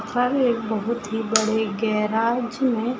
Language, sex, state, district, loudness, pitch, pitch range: Hindi, female, Maharashtra, Pune, -22 LUFS, 225 Hz, 220-245 Hz